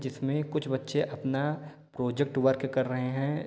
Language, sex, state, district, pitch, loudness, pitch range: Hindi, male, Jharkhand, Sahebganj, 135 Hz, -30 LUFS, 130-150 Hz